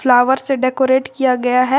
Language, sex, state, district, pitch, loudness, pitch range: Hindi, female, Jharkhand, Garhwa, 260 Hz, -15 LUFS, 250-265 Hz